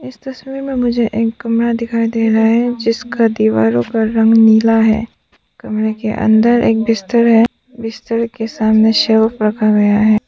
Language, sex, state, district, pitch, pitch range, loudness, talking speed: Hindi, female, Arunachal Pradesh, Papum Pare, 225 Hz, 220-235 Hz, -13 LUFS, 165 wpm